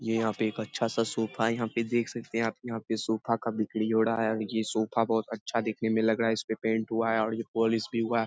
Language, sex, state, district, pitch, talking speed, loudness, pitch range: Hindi, male, Bihar, Lakhisarai, 115 Hz, 310 wpm, -29 LUFS, 110-115 Hz